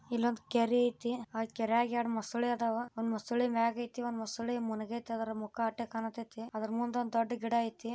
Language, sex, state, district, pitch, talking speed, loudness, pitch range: Kannada, female, Karnataka, Bijapur, 230 Hz, 120 wpm, -34 LUFS, 225-240 Hz